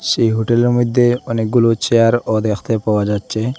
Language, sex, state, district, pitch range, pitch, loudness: Bengali, male, Assam, Hailakandi, 110-120 Hz, 115 Hz, -15 LUFS